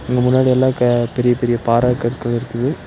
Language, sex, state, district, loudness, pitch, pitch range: Tamil, male, Tamil Nadu, Nilgiris, -16 LUFS, 125 Hz, 120-125 Hz